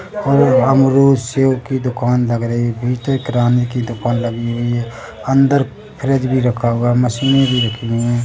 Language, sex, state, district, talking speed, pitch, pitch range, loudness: Hindi, male, Chhattisgarh, Bilaspur, 195 wpm, 125 Hz, 120-135 Hz, -15 LUFS